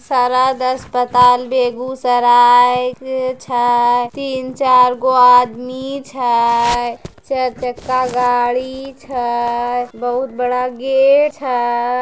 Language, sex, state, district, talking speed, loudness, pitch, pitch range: Angika, female, Bihar, Begusarai, 85 wpm, -15 LUFS, 250 Hz, 245-260 Hz